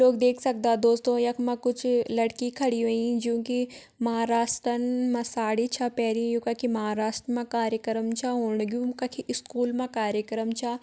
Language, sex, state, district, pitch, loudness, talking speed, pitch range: Garhwali, female, Uttarakhand, Tehri Garhwal, 240 Hz, -27 LUFS, 165 wpm, 230-245 Hz